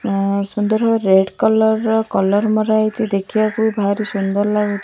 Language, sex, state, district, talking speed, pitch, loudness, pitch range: Odia, female, Odisha, Malkangiri, 150 wpm, 210 Hz, -17 LUFS, 200-220 Hz